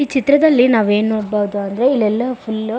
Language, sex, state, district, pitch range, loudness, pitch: Kannada, female, Karnataka, Bellary, 210-260 Hz, -15 LUFS, 225 Hz